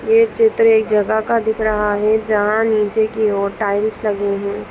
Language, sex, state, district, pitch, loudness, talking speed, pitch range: Hindi, male, West Bengal, Purulia, 215 Hz, -16 LUFS, 190 wpm, 210-220 Hz